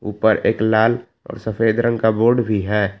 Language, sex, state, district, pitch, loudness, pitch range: Hindi, male, Jharkhand, Palamu, 110 Hz, -18 LUFS, 105-115 Hz